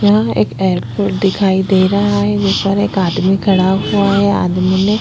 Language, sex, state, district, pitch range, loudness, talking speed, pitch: Hindi, female, Chhattisgarh, Korba, 185-200 Hz, -14 LUFS, 180 wpm, 195 Hz